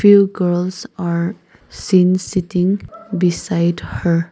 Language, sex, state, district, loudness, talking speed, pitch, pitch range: English, female, Nagaland, Kohima, -17 LUFS, 95 wpm, 180 Hz, 175-195 Hz